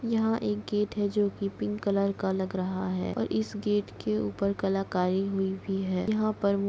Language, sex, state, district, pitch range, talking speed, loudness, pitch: Hindi, female, Chhattisgarh, Kabirdham, 190-210 Hz, 205 wpm, -29 LUFS, 200 Hz